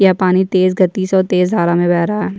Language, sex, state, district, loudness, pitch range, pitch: Hindi, female, Chhattisgarh, Jashpur, -14 LUFS, 180-190 Hz, 185 Hz